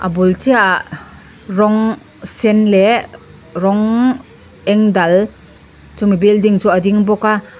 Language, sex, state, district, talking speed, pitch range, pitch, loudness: Mizo, female, Mizoram, Aizawl, 135 wpm, 195-215 Hz, 210 Hz, -13 LUFS